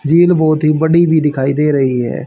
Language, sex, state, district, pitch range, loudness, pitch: Hindi, male, Haryana, Rohtak, 140-160 Hz, -12 LUFS, 155 Hz